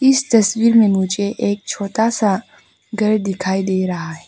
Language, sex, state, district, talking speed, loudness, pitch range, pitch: Hindi, female, Arunachal Pradesh, Papum Pare, 170 wpm, -17 LUFS, 190-225 Hz, 205 Hz